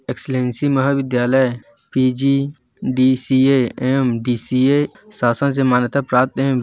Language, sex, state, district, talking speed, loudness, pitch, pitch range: Hindi, male, Chhattisgarh, Bilaspur, 90 wpm, -17 LUFS, 130 Hz, 125-135 Hz